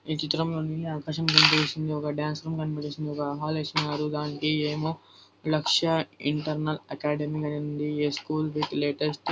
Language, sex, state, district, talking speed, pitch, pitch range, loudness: Telugu, female, Andhra Pradesh, Anantapur, 135 wpm, 150 Hz, 150-155 Hz, -27 LUFS